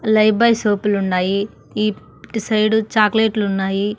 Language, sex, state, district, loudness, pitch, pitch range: Telugu, female, Andhra Pradesh, Annamaya, -18 LUFS, 215 Hz, 200-220 Hz